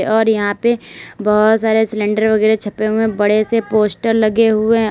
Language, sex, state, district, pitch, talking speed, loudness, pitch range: Hindi, female, Uttar Pradesh, Lalitpur, 220 Hz, 170 wpm, -15 LUFS, 215-225 Hz